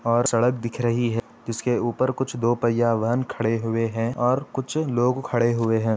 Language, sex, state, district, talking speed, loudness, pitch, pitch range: Hindi, male, Uttar Pradesh, Etah, 190 wpm, -23 LUFS, 120 Hz, 115-125 Hz